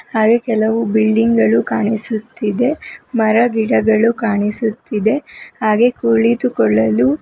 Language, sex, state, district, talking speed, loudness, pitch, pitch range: Kannada, female, Karnataka, Bangalore, 85 wpm, -15 LUFS, 225 Hz, 215-235 Hz